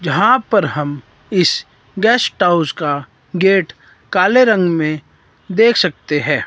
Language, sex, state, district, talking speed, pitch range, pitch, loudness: Hindi, male, Himachal Pradesh, Shimla, 130 wpm, 150-205 Hz, 180 Hz, -15 LUFS